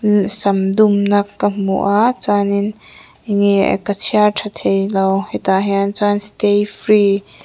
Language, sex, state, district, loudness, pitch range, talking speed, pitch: Mizo, female, Mizoram, Aizawl, -15 LUFS, 195-210 Hz, 120 wpm, 205 Hz